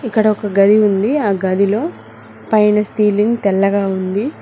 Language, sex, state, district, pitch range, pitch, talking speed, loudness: Telugu, female, Telangana, Mahabubabad, 195-215 Hz, 205 Hz, 135 wpm, -15 LUFS